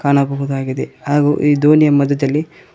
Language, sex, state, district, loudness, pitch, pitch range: Kannada, male, Karnataka, Koppal, -15 LUFS, 140 Hz, 140-145 Hz